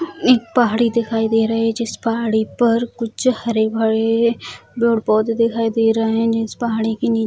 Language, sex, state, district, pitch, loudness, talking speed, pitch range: Hindi, female, Bihar, Bhagalpur, 230 Hz, -18 LUFS, 190 wpm, 225-235 Hz